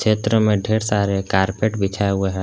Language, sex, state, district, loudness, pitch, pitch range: Hindi, male, Jharkhand, Palamu, -19 LUFS, 100 Hz, 95-110 Hz